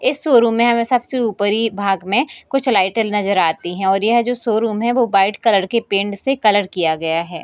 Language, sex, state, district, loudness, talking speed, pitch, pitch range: Hindi, female, Bihar, East Champaran, -17 LUFS, 225 wpm, 220 Hz, 195-240 Hz